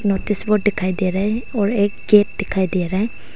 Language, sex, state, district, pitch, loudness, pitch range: Hindi, female, Arunachal Pradesh, Longding, 205 Hz, -19 LUFS, 190-210 Hz